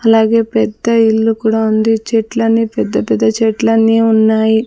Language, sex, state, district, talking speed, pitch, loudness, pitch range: Telugu, female, Andhra Pradesh, Sri Satya Sai, 130 wpm, 225 Hz, -12 LUFS, 220-225 Hz